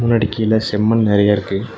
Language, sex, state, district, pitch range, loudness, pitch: Tamil, male, Tamil Nadu, Nilgiris, 105-115 Hz, -16 LUFS, 110 Hz